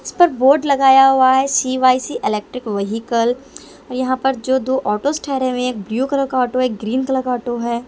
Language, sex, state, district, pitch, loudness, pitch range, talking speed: Hindi, female, Bihar, Patna, 255 Hz, -17 LUFS, 245-265 Hz, 230 wpm